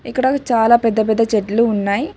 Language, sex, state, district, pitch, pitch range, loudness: Telugu, female, Telangana, Hyderabad, 230 Hz, 220-255 Hz, -16 LUFS